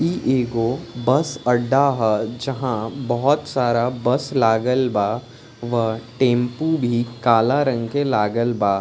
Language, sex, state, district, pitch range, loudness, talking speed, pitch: Bhojpuri, male, Bihar, East Champaran, 115-135 Hz, -20 LUFS, 130 wpm, 120 Hz